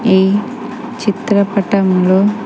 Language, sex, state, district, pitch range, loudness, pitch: Telugu, female, Andhra Pradesh, Sri Satya Sai, 195-230 Hz, -14 LUFS, 205 Hz